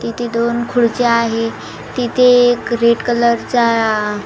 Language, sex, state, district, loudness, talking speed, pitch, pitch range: Marathi, female, Maharashtra, Washim, -14 LUFS, 125 wpm, 235 Hz, 230-240 Hz